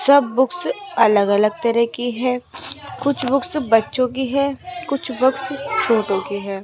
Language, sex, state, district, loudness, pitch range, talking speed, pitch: Hindi, female, Rajasthan, Jaipur, -19 LUFS, 225-280 Hz, 145 wpm, 255 Hz